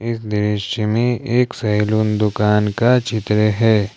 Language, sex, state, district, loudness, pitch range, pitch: Hindi, male, Jharkhand, Ranchi, -17 LUFS, 105-115 Hz, 105 Hz